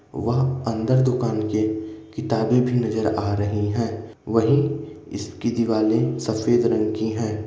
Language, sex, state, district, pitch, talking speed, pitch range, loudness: Hindi, male, Uttar Pradesh, Ghazipur, 110 Hz, 135 wpm, 110-120 Hz, -22 LUFS